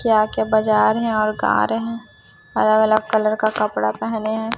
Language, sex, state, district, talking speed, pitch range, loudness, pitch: Hindi, female, Chhattisgarh, Raipur, 210 wpm, 215-220 Hz, -19 LUFS, 215 Hz